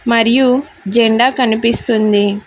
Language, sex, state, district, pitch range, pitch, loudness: Telugu, female, Telangana, Hyderabad, 220-250 Hz, 230 Hz, -13 LUFS